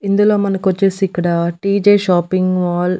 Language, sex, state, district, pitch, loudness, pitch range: Telugu, female, Andhra Pradesh, Annamaya, 190 Hz, -15 LUFS, 180-200 Hz